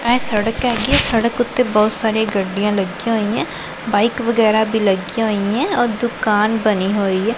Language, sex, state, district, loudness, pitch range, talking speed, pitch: Punjabi, female, Punjab, Pathankot, -17 LUFS, 210-235 Hz, 165 wpm, 220 Hz